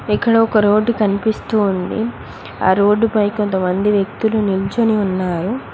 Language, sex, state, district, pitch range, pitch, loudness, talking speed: Telugu, female, Telangana, Mahabubabad, 195-220 Hz, 210 Hz, -16 LUFS, 115 wpm